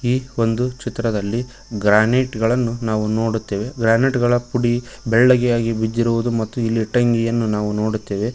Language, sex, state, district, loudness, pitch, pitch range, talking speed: Kannada, male, Karnataka, Koppal, -19 LUFS, 115 Hz, 110-120 Hz, 115 wpm